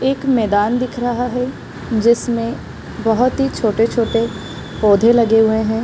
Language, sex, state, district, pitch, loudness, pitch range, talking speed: Hindi, female, Bihar, East Champaran, 235 Hz, -16 LUFS, 225-245 Hz, 155 wpm